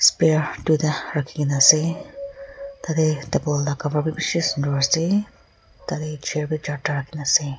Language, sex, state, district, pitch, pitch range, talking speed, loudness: Nagamese, female, Nagaland, Kohima, 155 Hz, 145-165 Hz, 150 wpm, -21 LUFS